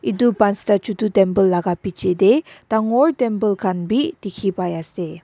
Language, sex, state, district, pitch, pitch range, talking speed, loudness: Nagamese, female, Nagaland, Dimapur, 200 Hz, 185-220 Hz, 160 wpm, -19 LUFS